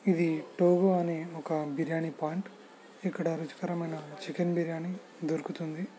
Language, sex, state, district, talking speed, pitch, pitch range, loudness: Telugu, male, Andhra Pradesh, Srikakulam, 110 wpm, 165 Hz, 160-180 Hz, -32 LUFS